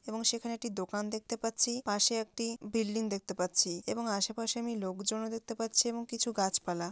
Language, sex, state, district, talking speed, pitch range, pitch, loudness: Bengali, female, West Bengal, Malda, 175 wpm, 200-235 Hz, 225 Hz, -33 LUFS